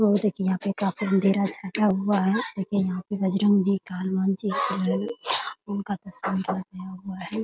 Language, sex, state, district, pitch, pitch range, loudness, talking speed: Hindi, female, Bihar, Muzaffarpur, 195 Hz, 190-205 Hz, -23 LUFS, 185 wpm